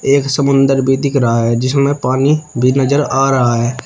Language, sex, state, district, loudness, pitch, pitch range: Hindi, male, Uttar Pradesh, Shamli, -13 LUFS, 135 Hz, 125-140 Hz